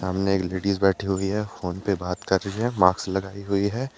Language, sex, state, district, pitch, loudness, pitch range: Hindi, male, Jharkhand, Deoghar, 95 Hz, -24 LUFS, 95-100 Hz